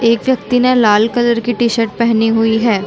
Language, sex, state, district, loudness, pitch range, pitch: Hindi, female, Chhattisgarh, Bilaspur, -13 LUFS, 225-240 Hz, 230 Hz